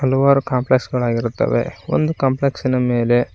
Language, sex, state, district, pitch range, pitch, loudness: Kannada, male, Karnataka, Koppal, 120-135 Hz, 130 Hz, -18 LUFS